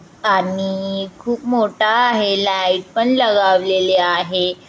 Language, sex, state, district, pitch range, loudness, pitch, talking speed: Marathi, female, Maharashtra, Chandrapur, 185-215 Hz, -17 LUFS, 195 Hz, 100 wpm